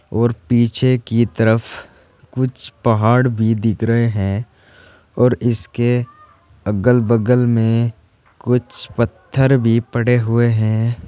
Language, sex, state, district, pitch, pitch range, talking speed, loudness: Hindi, male, Uttar Pradesh, Saharanpur, 115 Hz, 110-120 Hz, 115 wpm, -17 LUFS